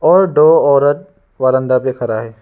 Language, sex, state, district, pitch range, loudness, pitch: Hindi, male, Arunachal Pradesh, Lower Dibang Valley, 130-150 Hz, -13 LUFS, 130 Hz